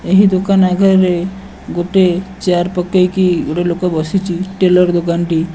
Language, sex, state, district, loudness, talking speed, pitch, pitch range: Odia, male, Odisha, Nuapada, -14 LUFS, 130 wpm, 180 Hz, 175-190 Hz